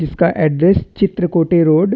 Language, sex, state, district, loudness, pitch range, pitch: Hindi, male, Chhattisgarh, Bastar, -14 LUFS, 160-180 Hz, 170 Hz